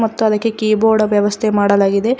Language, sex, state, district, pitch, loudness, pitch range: Kannada, female, Karnataka, Koppal, 215 Hz, -14 LUFS, 205-220 Hz